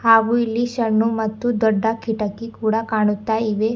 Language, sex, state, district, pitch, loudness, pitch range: Kannada, female, Karnataka, Bidar, 225 Hz, -20 LUFS, 220-230 Hz